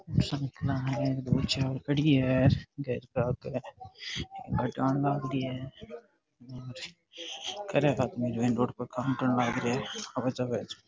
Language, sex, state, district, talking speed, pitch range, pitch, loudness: Rajasthani, male, Rajasthan, Churu, 70 wpm, 125-145 Hz, 130 Hz, -30 LUFS